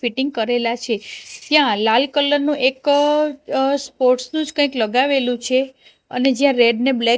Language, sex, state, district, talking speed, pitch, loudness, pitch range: Gujarati, female, Gujarat, Gandhinagar, 175 wpm, 265 Hz, -18 LUFS, 240-285 Hz